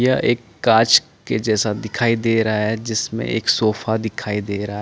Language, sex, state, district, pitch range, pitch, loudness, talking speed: Hindi, male, Chandigarh, Chandigarh, 105-115 Hz, 110 Hz, -19 LUFS, 210 wpm